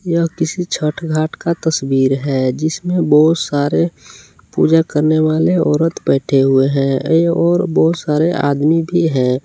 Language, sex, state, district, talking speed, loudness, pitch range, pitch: Hindi, male, Jharkhand, Palamu, 145 wpm, -15 LUFS, 140-170 Hz, 155 Hz